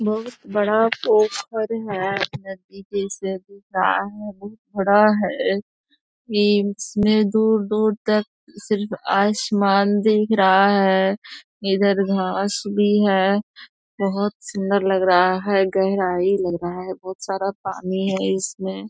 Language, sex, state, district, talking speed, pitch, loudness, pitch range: Hindi, female, Bihar, East Champaran, 110 wpm, 200 Hz, -20 LUFS, 190-210 Hz